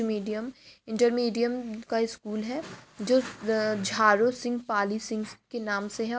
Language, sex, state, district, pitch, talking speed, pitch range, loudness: Hindi, female, Bihar, Jamui, 225 Hz, 155 wpm, 215-240 Hz, -28 LUFS